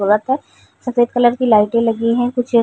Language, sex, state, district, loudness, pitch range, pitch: Hindi, female, Uttar Pradesh, Varanasi, -16 LUFS, 230-245 Hz, 240 Hz